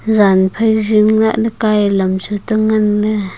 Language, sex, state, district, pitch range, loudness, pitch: Wancho, female, Arunachal Pradesh, Longding, 200-220 Hz, -13 LUFS, 215 Hz